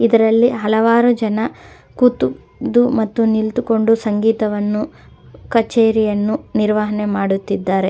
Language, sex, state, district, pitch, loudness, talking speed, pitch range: Kannada, female, Karnataka, Dakshina Kannada, 220 Hz, -16 LUFS, 75 wpm, 210-230 Hz